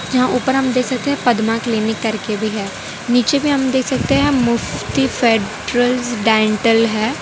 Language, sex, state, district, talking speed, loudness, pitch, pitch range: Hindi, female, Gujarat, Valsad, 175 wpm, -16 LUFS, 240 Hz, 220-255 Hz